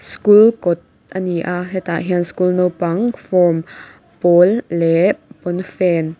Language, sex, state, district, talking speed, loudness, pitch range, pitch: Mizo, female, Mizoram, Aizawl, 125 wpm, -16 LUFS, 170-190 Hz, 180 Hz